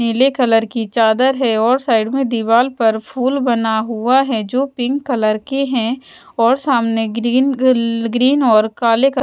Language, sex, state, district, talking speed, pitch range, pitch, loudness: Hindi, female, Bihar, West Champaran, 175 wpm, 225-260 Hz, 240 Hz, -15 LUFS